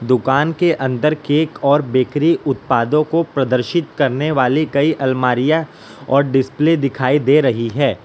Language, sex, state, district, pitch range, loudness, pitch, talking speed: Hindi, male, Gujarat, Valsad, 130-155 Hz, -16 LUFS, 140 Hz, 140 wpm